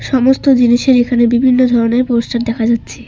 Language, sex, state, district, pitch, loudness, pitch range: Bengali, female, West Bengal, Cooch Behar, 245 Hz, -12 LUFS, 235-255 Hz